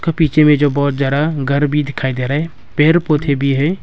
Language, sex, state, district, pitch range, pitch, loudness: Hindi, male, Arunachal Pradesh, Longding, 140-155 Hz, 145 Hz, -15 LUFS